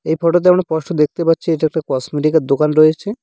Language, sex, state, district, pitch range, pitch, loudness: Bengali, male, West Bengal, Cooch Behar, 150-170 Hz, 160 Hz, -15 LUFS